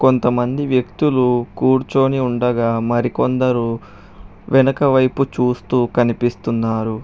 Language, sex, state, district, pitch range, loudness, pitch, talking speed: Telugu, male, Telangana, Hyderabad, 115-130 Hz, -17 LUFS, 125 Hz, 75 wpm